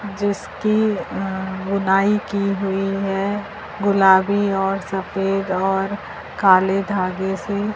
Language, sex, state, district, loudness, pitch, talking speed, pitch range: Hindi, male, Madhya Pradesh, Dhar, -20 LUFS, 195 Hz, 110 wpm, 195-205 Hz